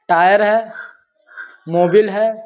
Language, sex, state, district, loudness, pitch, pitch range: Hindi, male, Bihar, East Champaran, -14 LUFS, 215 Hz, 175-225 Hz